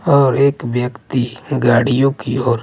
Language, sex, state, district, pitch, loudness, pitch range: Hindi, male, Delhi, New Delhi, 130 Hz, -16 LUFS, 120-135 Hz